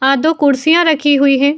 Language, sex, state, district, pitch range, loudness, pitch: Hindi, female, Uttar Pradesh, Jyotiba Phule Nagar, 280-315 Hz, -12 LUFS, 285 Hz